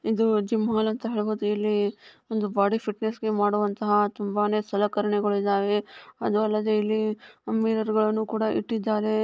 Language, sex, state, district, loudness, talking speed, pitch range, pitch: Kannada, female, Karnataka, Dharwad, -25 LUFS, 105 wpm, 205-220 Hz, 215 Hz